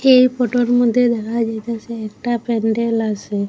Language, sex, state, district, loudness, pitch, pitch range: Bengali, female, Assam, Hailakandi, -18 LUFS, 235 Hz, 225-245 Hz